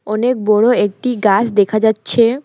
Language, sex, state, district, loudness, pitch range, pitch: Bengali, female, West Bengal, Alipurduar, -14 LUFS, 210-240 Hz, 220 Hz